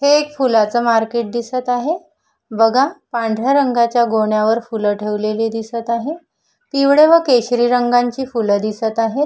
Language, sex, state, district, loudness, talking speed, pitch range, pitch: Marathi, female, Maharashtra, Solapur, -16 LUFS, 135 wpm, 225-270 Hz, 235 Hz